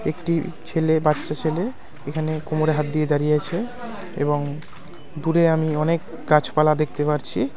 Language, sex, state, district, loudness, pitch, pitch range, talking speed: Bengali, male, West Bengal, Cooch Behar, -22 LUFS, 155 Hz, 150-165 Hz, 135 wpm